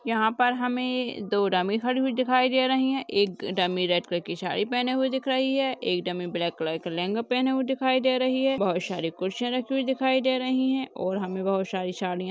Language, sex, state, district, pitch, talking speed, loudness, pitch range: Hindi, female, Chhattisgarh, Bastar, 245 Hz, 240 wpm, -26 LUFS, 185-260 Hz